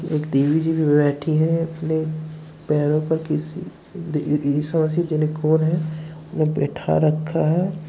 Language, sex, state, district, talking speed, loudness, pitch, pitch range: Hindi, male, Uttar Pradesh, Muzaffarnagar, 145 wpm, -21 LUFS, 155 Hz, 150-160 Hz